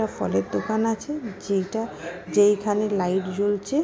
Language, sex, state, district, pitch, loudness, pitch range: Bengali, female, West Bengal, Kolkata, 205 Hz, -24 LUFS, 185-220 Hz